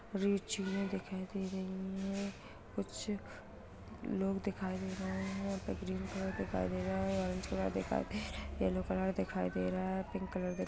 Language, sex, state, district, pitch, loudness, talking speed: Hindi, female, Bihar, Muzaffarpur, 185 Hz, -38 LUFS, 180 wpm